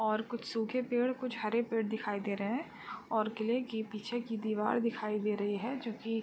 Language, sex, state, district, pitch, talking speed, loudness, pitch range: Hindi, female, Bihar, Gopalganj, 225 Hz, 230 wpm, -35 LUFS, 215-240 Hz